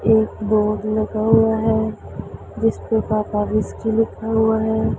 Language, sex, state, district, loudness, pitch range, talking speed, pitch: Hindi, female, Punjab, Pathankot, -19 LUFS, 215-220 Hz, 130 wpm, 220 Hz